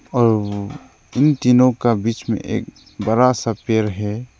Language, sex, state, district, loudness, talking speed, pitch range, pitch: Hindi, male, Arunachal Pradesh, Lower Dibang Valley, -18 LUFS, 150 wpm, 105-125 Hz, 115 Hz